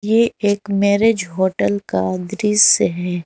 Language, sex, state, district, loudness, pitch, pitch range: Hindi, female, Jharkhand, Garhwa, -16 LUFS, 200 Hz, 175-210 Hz